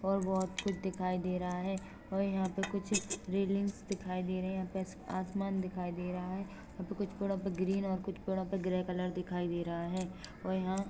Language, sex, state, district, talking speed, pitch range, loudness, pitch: Hindi, female, Jharkhand, Jamtara, 225 wpm, 185-195 Hz, -37 LUFS, 190 Hz